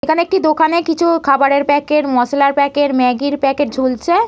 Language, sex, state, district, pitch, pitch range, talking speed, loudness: Bengali, female, West Bengal, North 24 Parganas, 285 Hz, 275-320 Hz, 170 wpm, -14 LUFS